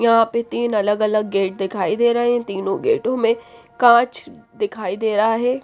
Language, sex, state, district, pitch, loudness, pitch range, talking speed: Hindi, female, Haryana, Rohtak, 230 Hz, -19 LUFS, 210-240 Hz, 190 wpm